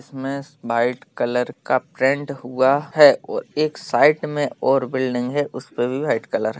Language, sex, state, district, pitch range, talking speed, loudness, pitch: Hindi, male, Bihar, Bhagalpur, 125-145 Hz, 175 wpm, -20 LUFS, 135 Hz